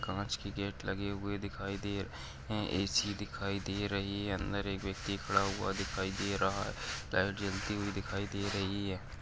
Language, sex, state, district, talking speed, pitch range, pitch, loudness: Bhojpuri, male, Uttar Pradesh, Gorakhpur, 200 wpm, 95-100 Hz, 100 Hz, -36 LUFS